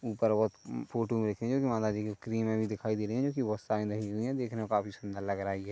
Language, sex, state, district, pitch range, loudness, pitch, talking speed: Hindi, male, Chhattisgarh, Korba, 105-115 Hz, -33 LUFS, 110 Hz, 305 wpm